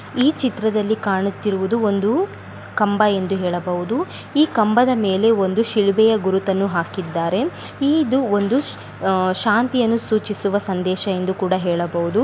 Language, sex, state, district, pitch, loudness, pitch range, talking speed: Kannada, female, Karnataka, Bellary, 205 Hz, -19 LUFS, 190-230 Hz, 115 wpm